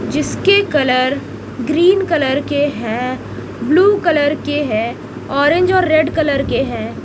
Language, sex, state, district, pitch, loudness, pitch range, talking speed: Hindi, female, Odisha, Nuapada, 295 Hz, -15 LUFS, 270-340 Hz, 135 wpm